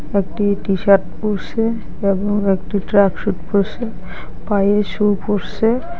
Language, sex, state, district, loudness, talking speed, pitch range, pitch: Bengali, female, West Bengal, Alipurduar, -18 LUFS, 100 wpm, 195-215 Hz, 205 Hz